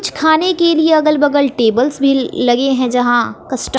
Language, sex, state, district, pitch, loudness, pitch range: Hindi, female, Bihar, West Champaran, 275 Hz, -13 LUFS, 250-310 Hz